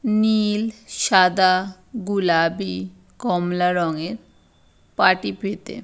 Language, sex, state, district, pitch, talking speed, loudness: Bengali, female, West Bengal, Purulia, 180 Hz, 70 wpm, -20 LUFS